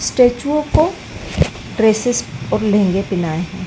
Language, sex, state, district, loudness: Hindi, female, Madhya Pradesh, Dhar, -17 LUFS